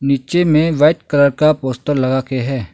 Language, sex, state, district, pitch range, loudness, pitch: Hindi, male, Arunachal Pradesh, Longding, 130-155 Hz, -15 LUFS, 140 Hz